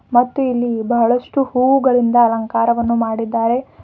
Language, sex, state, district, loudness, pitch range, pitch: Kannada, female, Karnataka, Bidar, -16 LUFS, 230-250 Hz, 240 Hz